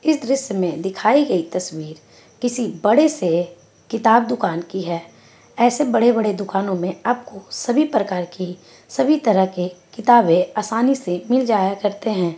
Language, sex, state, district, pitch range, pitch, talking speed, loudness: Hindi, female, Bihar, Gaya, 180-240 Hz, 200 Hz, 155 wpm, -19 LUFS